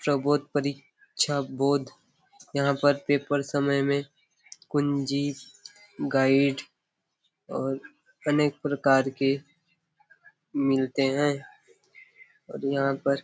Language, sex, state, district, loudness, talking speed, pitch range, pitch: Hindi, male, Chhattisgarh, Bastar, -26 LUFS, 85 wpm, 140-170 Hz, 140 Hz